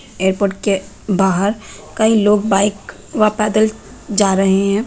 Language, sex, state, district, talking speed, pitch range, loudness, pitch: Hindi, female, Bihar, Gaya, 135 wpm, 195-215 Hz, -16 LUFS, 205 Hz